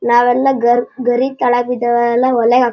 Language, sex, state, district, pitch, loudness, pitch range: Kannada, male, Karnataka, Shimoga, 245 Hz, -14 LUFS, 240-250 Hz